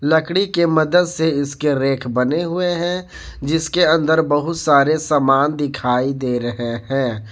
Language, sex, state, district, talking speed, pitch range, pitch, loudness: Hindi, male, Jharkhand, Garhwa, 150 wpm, 135-165 Hz, 150 Hz, -18 LUFS